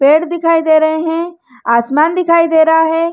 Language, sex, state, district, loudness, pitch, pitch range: Hindi, female, Chhattisgarh, Rajnandgaon, -12 LUFS, 320 Hz, 315-335 Hz